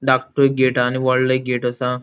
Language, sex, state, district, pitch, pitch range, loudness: Konkani, male, Goa, North and South Goa, 130 Hz, 125-130 Hz, -18 LUFS